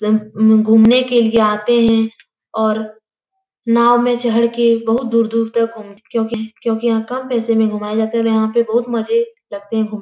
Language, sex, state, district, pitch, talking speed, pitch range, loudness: Hindi, female, Uttar Pradesh, Etah, 230 Hz, 180 wpm, 220-235 Hz, -15 LUFS